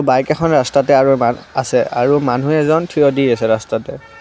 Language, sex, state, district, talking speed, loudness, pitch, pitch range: Assamese, male, Assam, Kamrup Metropolitan, 185 wpm, -15 LUFS, 140 Hz, 125-150 Hz